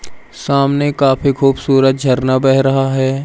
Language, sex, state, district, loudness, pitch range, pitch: Hindi, male, Madhya Pradesh, Umaria, -13 LUFS, 135-140 Hz, 135 Hz